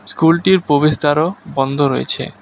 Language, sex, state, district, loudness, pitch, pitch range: Bengali, male, West Bengal, Alipurduar, -15 LUFS, 150 Hz, 145-170 Hz